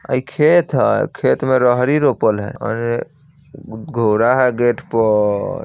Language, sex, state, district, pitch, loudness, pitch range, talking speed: Bajjika, male, Bihar, Vaishali, 125 Hz, -16 LUFS, 115-140 Hz, 140 wpm